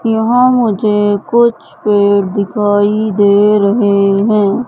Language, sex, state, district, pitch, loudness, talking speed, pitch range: Hindi, female, Madhya Pradesh, Katni, 210 Hz, -11 LUFS, 105 wpm, 200-220 Hz